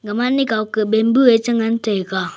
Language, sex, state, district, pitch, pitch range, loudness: Wancho, male, Arunachal Pradesh, Longding, 220 Hz, 210-240 Hz, -17 LUFS